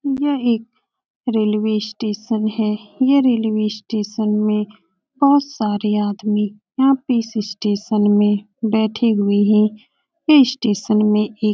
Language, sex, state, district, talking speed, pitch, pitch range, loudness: Hindi, female, Uttar Pradesh, Etah, 130 wpm, 215 Hz, 210-240 Hz, -18 LUFS